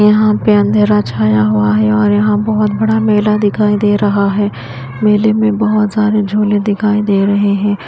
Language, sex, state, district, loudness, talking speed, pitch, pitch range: Hindi, female, Haryana, Jhajjar, -12 LUFS, 185 wpm, 210 Hz, 200-210 Hz